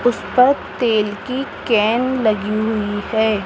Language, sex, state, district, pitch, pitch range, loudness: Hindi, female, Rajasthan, Jaipur, 220 Hz, 210-245 Hz, -18 LUFS